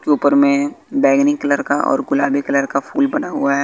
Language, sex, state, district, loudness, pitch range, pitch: Hindi, male, Bihar, West Champaran, -16 LUFS, 140-145 Hz, 140 Hz